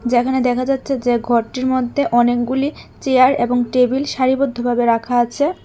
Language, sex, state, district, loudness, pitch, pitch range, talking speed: Bengali, female, Tripura, West Tripura, -17 LUFS, 255 Hz, 240-265 Hz, 140 wpm